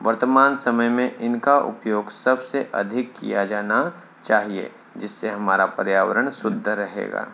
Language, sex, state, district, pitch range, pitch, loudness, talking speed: Hindi, male, Uttar Pradesh, Hamirpur, 105-130 Hz, 120 Hz, -21 LUFS, 120 wpm